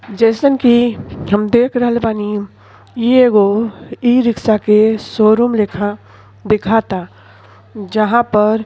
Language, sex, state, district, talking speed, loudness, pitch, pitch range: Bhojpuri, female, Uttar Pradesh, Ghazipur, 110 wpm, -14 LUFS, 215 Hz, 205-235 Hz